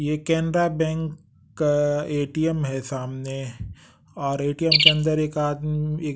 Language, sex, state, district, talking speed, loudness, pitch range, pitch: Hindi, male, Bihar, West Champaran, 135 wpm, -22 LUFS, 140-155 Hz, 150 Hz